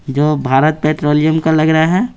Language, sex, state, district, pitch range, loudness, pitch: Hindi, male, Bihar, Patna, 150-160 Hz, -13 LUFS, 155 Hz